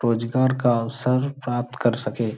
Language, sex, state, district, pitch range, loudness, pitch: Hindi, male, Bihar, Jahanabad, 115-130 Hz, -23 LUFS, 120 Hz